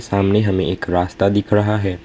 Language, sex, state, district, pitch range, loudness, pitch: Hindi, male, West Bengal, Alipurduar, 95-105 Hz, -17 LUFS, 100 Hz